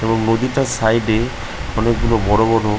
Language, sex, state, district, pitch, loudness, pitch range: Bengali, male, West Bengal, North 24 Parganas, 115 Hz, -17 LUFS, 110-115 Hz